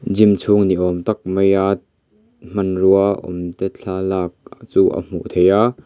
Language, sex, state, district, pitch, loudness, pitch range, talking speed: Mizo, male, Mizoram, Aizawl, 95 Hz, -17 LUFS, 90-100 Hz, 155 wpm